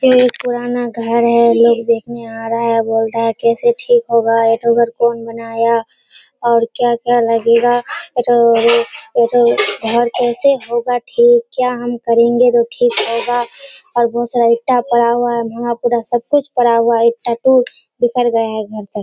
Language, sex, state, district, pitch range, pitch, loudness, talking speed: Hindi, female, Bihar, Kishanganj, 230-245 Hz, 235 Hz, -14 LUFS, 185 wpm